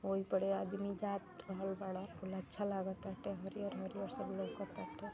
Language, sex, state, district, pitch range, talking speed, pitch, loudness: Bhojpuri, female, Uttar Pradesh, Ghazipur, 190-200 Hz, 150 wpm, 195 Hz, -42 LUFS